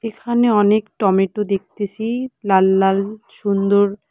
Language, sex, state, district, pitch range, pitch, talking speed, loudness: Bengali, female, West Bengal, Cooch Behar, 195-220 Hz, 205 Hz, 100 wpm, -18 LUFS